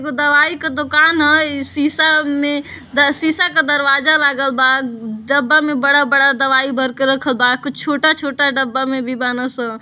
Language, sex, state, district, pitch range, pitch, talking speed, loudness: Bhojpuri, female, Uttar Pradesh, Deoria, 265-300 Hz, 285 Hz, 175 wpm, -14 LUFS